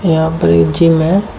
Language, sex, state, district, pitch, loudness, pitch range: Hindi, male, Uttar Pradesh, Shamli, 160 Hz, -12 LUFS, 155-170 Hz